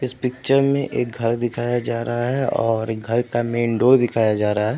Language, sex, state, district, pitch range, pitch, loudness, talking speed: Hindi, male, Uttar Pradesh, Etah, 115-125 Hz, 120 Hz, -20 LUFS, 225 wpm